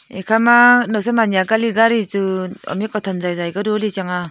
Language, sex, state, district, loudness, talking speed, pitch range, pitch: Wancho, female, Arunachal Pradesh, Longding, -16 LUFS, 180 wpm, 190-225 Hz, 210 Hz